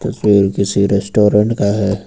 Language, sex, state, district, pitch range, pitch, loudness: Hindi, male, Uttar Pradesh, Lucknow, 100-105 Hz, 100 Hz, -14 LUFS